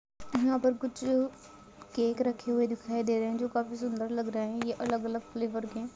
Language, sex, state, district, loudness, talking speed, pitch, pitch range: Hindi, female, Chhattisgarh, Sarguja, -32 LUFS, 210 wpm, 235 Hz, 230-245 Hz